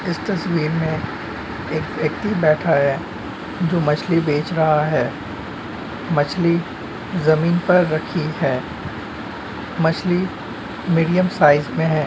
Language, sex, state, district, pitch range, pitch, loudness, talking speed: Hindi, male, Andhra Pradesh, Srikakulam, 150-170 Hz, 160 Hz, -20 LUFS, 95 wpm